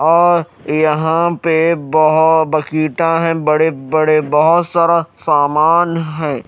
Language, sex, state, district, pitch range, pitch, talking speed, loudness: Hindi, male, Odisha, Malkangiri, 155-165 Hz, 160 Hz, 110 wpm, -14 LUFS